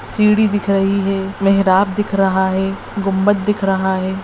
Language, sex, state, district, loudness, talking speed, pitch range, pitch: Hindi, female, Bihar, Jahanabad, -16 LUFS, 170 wpm, 190-205 Hz, 195 Hz